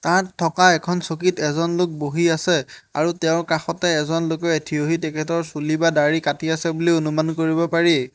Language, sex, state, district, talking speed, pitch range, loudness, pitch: Assamese, male, Assam, Hailakandi, 175 wpm, 155-170 Hz, -20 LUFS, 165 Hz